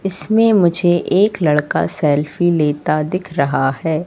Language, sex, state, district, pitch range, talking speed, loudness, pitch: Hindi, female, Madhya Pradesh, Katni, 150-185 Hz, 135 wpm, -16 LUFS, 170 Hz